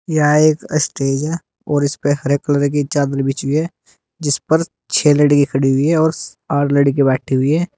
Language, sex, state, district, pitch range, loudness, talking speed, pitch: Hindi, male, Uttar Pradesh, Saharanpur, 140-155 Hz, -16 LUFS, 200 wpm, 145 Hz